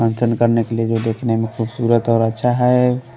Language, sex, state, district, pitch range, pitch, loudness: Hindi, male, Haryana, Rohtak, 115-120 Hz, 115 Hz, -17 LUFS